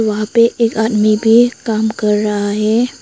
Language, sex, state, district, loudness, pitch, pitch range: Hindi, female, Arunachal Pradesh, Lower Dibang Valley, -14 LUFS, 220 Hz, 210-230 Hz